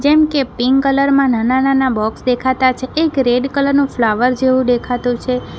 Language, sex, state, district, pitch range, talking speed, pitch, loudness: Gujarati, female, Gujarat, Valsad, 245-275 Hz, 185 wpm, 260 Hz, -15 LUFS